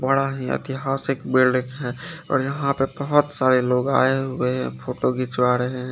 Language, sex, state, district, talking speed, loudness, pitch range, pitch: Hindi, male, Chandigarh, Chandigarh, 180 wpm, -22 LUFS, 125-135 Hz, 130 Hz